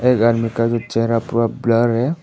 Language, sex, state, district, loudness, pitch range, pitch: Hindi, male, Arunachal Pradesh, Papum Pare, -18 LUFS, 115-120 Hz, 115 Hz